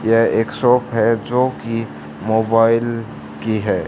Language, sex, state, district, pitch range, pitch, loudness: Hindi, male, Haryana, Charkhi Dadri, 110-115 Hz, 115 Hz, -18 LUFS